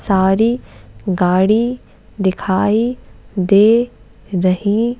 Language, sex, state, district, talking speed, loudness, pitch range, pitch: Hindi, female, Madhya Pradesh, Bhopal, 60 wpm, -16 LUFS, 185-225 Hz, 200 Hz